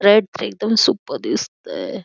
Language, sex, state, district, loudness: Marathi, female, Karnataka, Belgaum, -19 LUFS